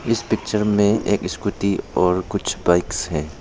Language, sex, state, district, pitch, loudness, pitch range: Hindi, male, Arunachal Pradesh, Papum Pare, 100 Hz, -20 LUFS, 90-105 Hz